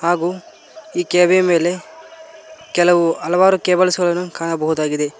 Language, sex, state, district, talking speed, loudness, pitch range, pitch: Kannada, male, Karnataka, Koppal, 105 wpm, -16 LUFS, 170-190 Hz, 175 Hz